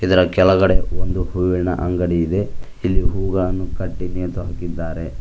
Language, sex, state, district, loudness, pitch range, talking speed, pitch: Kannada, male, Karnataka, Koppal, -20 LUFS, 90-95 Hz, 115 wpm, 90 Hz